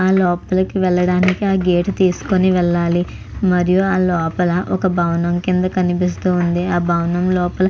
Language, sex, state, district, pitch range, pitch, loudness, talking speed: Telugu, female, Andhra Pradesh, Chittoor, 175-185 Hz, 180 Hz, -17 LUFS, 140 wpm